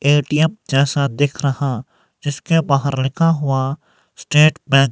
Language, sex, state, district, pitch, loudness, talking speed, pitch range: Hindi, male, Himachal Pradesh, Shimla, 145 Hz, -17 LUFS, 135 wpm, 135-155 Hz